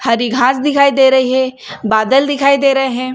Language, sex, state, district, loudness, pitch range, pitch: Hindi, female, Chhattisgarh, Bilaspur, -12 LUFS, 250-275 Hz, 260 Hz